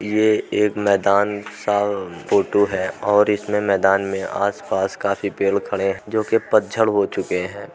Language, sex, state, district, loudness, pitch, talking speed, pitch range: Hindi, male, Uttar Pradesh, Muzaffarnagar, -20 LUFS, 100 Hz, 155 wpm, 100-105 Hz